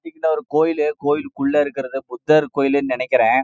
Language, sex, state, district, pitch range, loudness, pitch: Tamil, male, Karnataka, Chamarajanagar, 140-155 Hz, -19 LUFS, 145 Hz